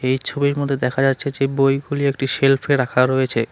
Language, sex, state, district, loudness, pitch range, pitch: Bengali, male, West Bengal, Alipurduar, -19 LUFS, 130-140 Hz, 135 Hz